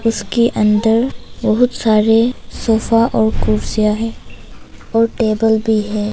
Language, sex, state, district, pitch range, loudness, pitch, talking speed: Hindi, female, Arunachal Pradesh, Papum Pare, 215-230 Hz, -15 LUFS, 220 Hz, 115 wpm